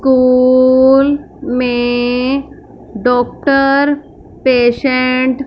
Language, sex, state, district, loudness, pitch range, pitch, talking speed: Hindi, female, Punjab, Fazilka, -12 LUFS, 250-275 Hz, 255 Hz, 55 wpm